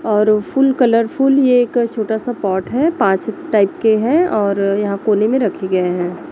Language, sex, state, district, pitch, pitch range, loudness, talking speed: Hindi, female, Chhattisgarh, Raipur, 220 Hz, 200-245 Hz, -15 LUFS, 190 wpm